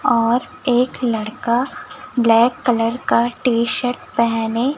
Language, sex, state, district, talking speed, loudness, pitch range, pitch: Hindi, male, Chhattisgarh, Raipur, 100 wpm, -18 LUFS, 235-255 Hz, 245 Hz